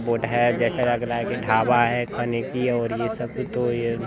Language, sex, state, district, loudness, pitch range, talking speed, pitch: Hindi, male, Bihar, Araria, -23 LUFS, 115-120 Hz, 250 wpm, 120 Hz